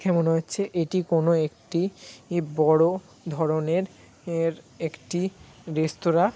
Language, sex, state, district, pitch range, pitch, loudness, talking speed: Bengali, male, West Bengal, Kolkata, 160-180 Hz, 165 Hz, -25 LUFS, 105 wpm